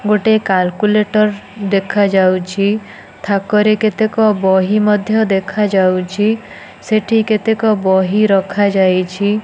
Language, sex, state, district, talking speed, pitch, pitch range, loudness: Odia, female, Odisha, Nuapada, 95 wpm, 205 Hz, 195-215 Hz, -14 LUFS